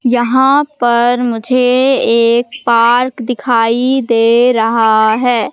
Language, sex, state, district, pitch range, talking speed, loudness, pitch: Hindi, female, Madhya Pradesh, Katni, 230-250 Hz, 100 wpm, -11 LUFS, 240 Hz